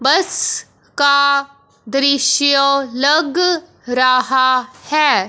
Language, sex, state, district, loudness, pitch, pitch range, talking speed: Hindi, male, Punjab, Fazilka, -15 LUFS, 280 Hz, 265-295 Hz, 70 wpm